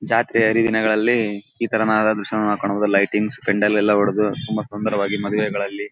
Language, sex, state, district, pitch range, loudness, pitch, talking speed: Kannada, male, Karnataka, Bellary, 105-110 Hz, -20 LUFS, 105 Hz, 130 wpm